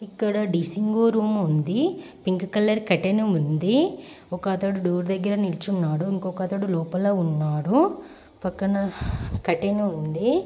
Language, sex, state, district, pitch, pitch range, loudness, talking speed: Telugu, female, Andhra Pradesh, Srikakulam, 195 Hz, 180-215 Hz, -24 LUFS, 105 wpm